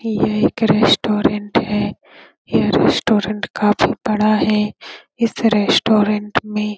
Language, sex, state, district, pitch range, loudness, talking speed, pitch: Hindi, female, Bihar, Saran, 210-220 Hz, -17 LUFS, 115 wpm, 210 Hz